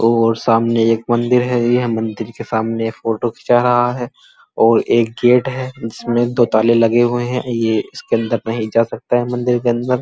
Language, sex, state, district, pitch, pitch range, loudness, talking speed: Hindi, male, Uttar Pradesh, Muzaffarnagar, 120 Hz, 115-120 Hz, -16 LUFS, 200 wpm